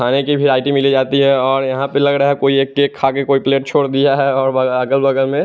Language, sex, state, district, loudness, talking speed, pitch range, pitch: Hindi, male, Chandigarh, Chandigarh, -14 LUFS, 285 wpm, 135-140 Hz, 135 Hz